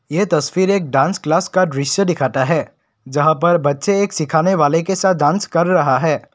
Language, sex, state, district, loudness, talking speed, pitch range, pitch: Hindi, male, Assam, Kamrup Metropolitan, -16 LUFS, 200 wpm, 145-190 Hz, 170 Hz